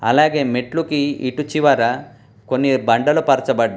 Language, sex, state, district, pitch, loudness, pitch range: Telugu, male, Telangana, Hyderabad, 135 Hz, -17 LUFS, 125-150 Hz